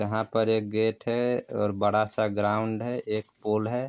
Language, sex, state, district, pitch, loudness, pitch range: Hindi, male, Bihar, Vaishali, 110 Hz, -27 LUFS, 105-110 Hz